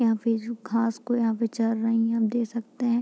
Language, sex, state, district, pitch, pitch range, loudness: Hindi, female, Bihar, Muzaffarpur, 230 Hz, 225-235 Hz, -26 LUFS